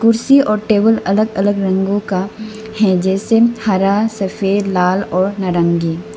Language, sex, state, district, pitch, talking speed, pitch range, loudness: Hindi, female, Arunachal Pradesh, Lower Dibang Valley, 200 Hz, 135 wpm, 190-220 Hz, -15 LUFS